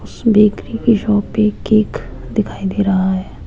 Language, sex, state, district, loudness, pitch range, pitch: Hindi, female, Rajasthan, Jaipur, -16 LUFS, 195-215 Hz, 210 Hz